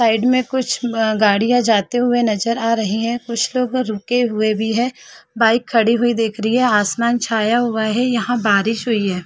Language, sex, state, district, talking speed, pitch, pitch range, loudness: Hindi, female, Chhattisgarh, Sarguja, 200 wpm, 230 Hz, 220-245 Hz, -17 LUFS